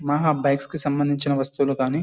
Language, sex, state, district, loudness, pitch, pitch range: Telugu, male, Karnataka, Bellary, -22 LUFS, 145 Hz, 140-145 Hz